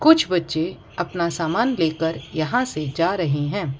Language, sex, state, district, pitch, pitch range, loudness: Hindi, female, Gujarat, Valsad, 165 Hz, 155-180 Hz, -22 LUFS